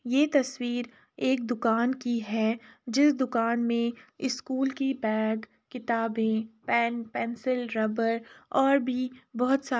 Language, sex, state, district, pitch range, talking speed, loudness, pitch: Hindi, female, Uttar Pradesh, Etah, 230-260 Hz, 130 wpm, -28 LUFS, 240 Hz